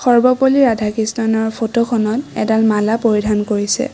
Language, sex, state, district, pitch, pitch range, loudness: Assamese, female, Assam, Kamrup Metropolitan, 220 Hz, 215-240 Hz, -15 LUFS